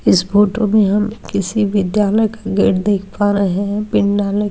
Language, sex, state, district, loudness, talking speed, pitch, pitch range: Hindi, female, Rajasthan, Nagaur, -16 LUFS, 160 wpm, 205 Hz, 200-210 Hz